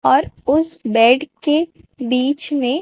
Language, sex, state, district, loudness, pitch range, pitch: Hindi, female, Chhattisgarh, Raipur, -17 LUFS, 250-305 Hz, 285 Hz